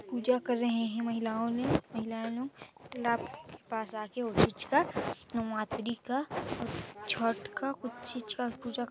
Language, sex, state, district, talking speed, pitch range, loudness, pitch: Hindi, female, Chhattisgarh, Sarguja, 135 wpm, 225-245 Hz, -33 LUFS, 235 Hz